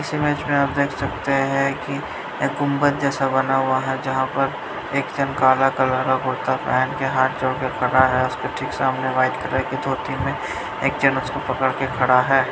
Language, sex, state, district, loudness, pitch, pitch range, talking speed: Hindi, male, Bihar, Saharsa, -21 LUFS, 130 Hz, 130-140 Hz, 210 wpm